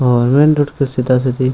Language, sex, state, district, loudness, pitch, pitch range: Hindi, male, Bihar, Purnia, -14 LUFS, 130 Hz, 125-145 Hz